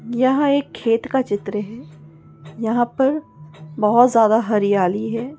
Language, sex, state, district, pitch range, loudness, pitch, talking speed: Hindi, female, Maharashtra, Chandrapur, 200-245 Hz, -19 LUFS, 225 Hz, 135 wpm